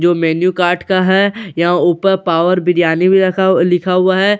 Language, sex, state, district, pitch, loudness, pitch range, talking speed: Hindi, male, Bihar, Katihar, 180 Hz, -13 LUFS, 175-190 Hz, 220 wpm